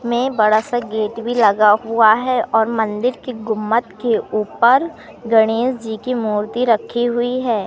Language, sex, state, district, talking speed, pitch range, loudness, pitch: Hindi, male, Madhya Pradesh, Katni, 165 wpm, 215-240 Hz, -17 LUFS, 225 Hz